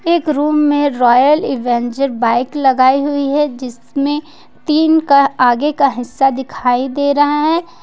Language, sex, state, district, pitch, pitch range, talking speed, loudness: Hindi, female, Jharkhand, Ranchi, 280 Hz, 255-295 Hz, 155 wpm, -14 LUFS